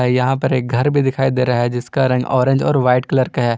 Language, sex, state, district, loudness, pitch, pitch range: Hindi, male, Jharkhand, Garhwa, -16 LUFS, 130 Hz, 125-135 Hz